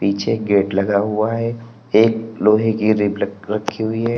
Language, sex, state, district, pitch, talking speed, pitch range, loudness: Hindi, male, Uttar Pradesh, Lalitpur, 110 Hz, 160 wpm, 100-115 Hz, -18 LUFS